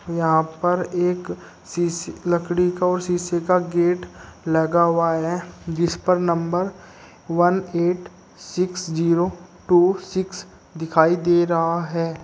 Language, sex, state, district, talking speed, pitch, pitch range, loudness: Hindi, male, Uttar Pradesh, Shamli, 125 wpm, 175 Hz, 165-180 Hz, -21 LUFS